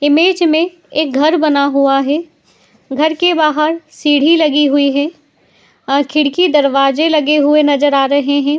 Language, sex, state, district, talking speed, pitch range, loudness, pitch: Hindi, female, Uttar Pradesh, Jalaun, 160 wpm, 285-315 Hz, -12 LUFS, 295 Hz